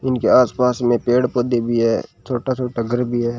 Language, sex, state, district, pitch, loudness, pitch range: Hindi, male, Rajasthan, Bikaner, 125 Hz, -18 LUFS, 120-125 Hz